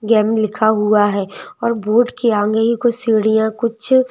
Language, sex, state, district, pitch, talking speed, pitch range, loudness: Hindi, female, Madhya Pradesh, Bhopal, 220 Hz, 175 wpm, 215-235 Hz, -16 LUFS